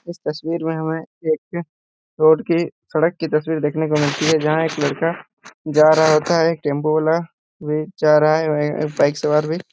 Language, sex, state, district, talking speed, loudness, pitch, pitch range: Hindi, male, Jharkhand, Jamtara, 205 wpm, -18 LUFS, 155 Hz, 150-165 Hz